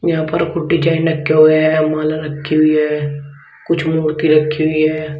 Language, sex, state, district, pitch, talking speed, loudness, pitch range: Hindi, male, Uttar Pradesh, Shamli, 155 Hz, 185 wpm, -15 LUFS, 155-160 Hz